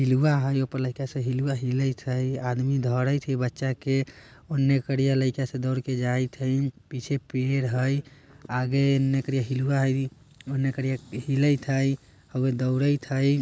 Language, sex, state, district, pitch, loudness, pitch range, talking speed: Bajjika, male, Bihar, Vaishali, 135 Hz, -26 LUFS, 130-135 Hz, 145 wpm